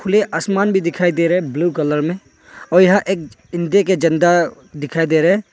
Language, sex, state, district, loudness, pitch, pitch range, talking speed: Hindi, male, Arunachal Pradesh, Papum Pare, -16 LUFS, 175 Hz, 165-190 Hz, 195 wpm